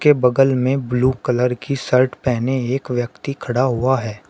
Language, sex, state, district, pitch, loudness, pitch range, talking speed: Hindi, male, Uttar Pradesh, Shamli, 125 Hz, -19 LUFS, 125-130 Hz, 165 wpm